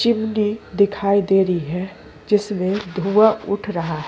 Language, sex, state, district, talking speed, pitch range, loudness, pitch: Hindi, female, Chhattisgarh, Korba, 130 wpm, 185-210 Hz, -19 LUFS, 200 Hz